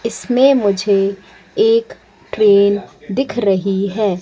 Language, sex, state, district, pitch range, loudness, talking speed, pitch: Hindi, female, Madhya Pradesh, Katni, 195-250 Hz, -15 LUFS, 100 wpm, 205 Hz